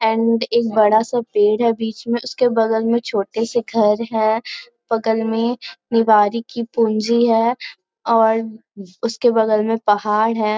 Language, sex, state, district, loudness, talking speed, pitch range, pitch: Hindi, female, Bihar, Jamui, -18 LUFS, 155 wpm, 220-235 Hz, 225 Hz